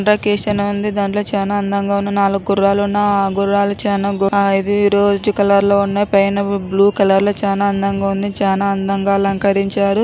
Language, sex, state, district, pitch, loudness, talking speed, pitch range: Telugu, female, Andhra Pradesh, Anantapur, 200 Hz, -16 LUFS, 175 wpm, 195-205 Hz